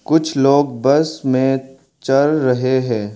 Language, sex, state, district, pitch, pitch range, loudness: Hindi, male, Arunachal Pradesh, Longding, 135 Hz, 130-145 Hz, -16 LUFS